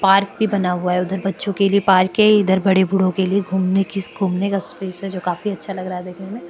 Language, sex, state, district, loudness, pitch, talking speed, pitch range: Hindi, female, Maharashtra, Chandrapur, -18 LUFS, 195 Hz, 260 wpm, 185-195 Hz